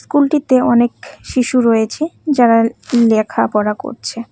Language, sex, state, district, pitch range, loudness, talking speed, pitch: Bengali, female, West Bengal, Cooch Behar, 230-270 Hz, -15 LUFS, 95 wpm, 240 Hz